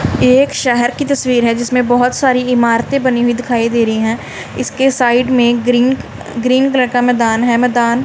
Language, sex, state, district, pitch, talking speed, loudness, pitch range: Hindi, female, Punjab, Kapurthala, 245 Hz, 195 wpm, -13 LUFS, 240-255 Hz